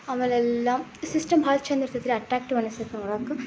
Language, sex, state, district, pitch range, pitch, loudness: Kannada, female, Karnataka, Belgaum, 235-275 Hz, 250 Hz, -26 LUFS